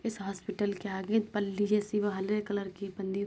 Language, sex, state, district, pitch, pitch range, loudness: Hindi, female, Uttar Pradesh, Jyotiba Phule Nagar, 205 Hz, 195-210 Hz, -33 LUFS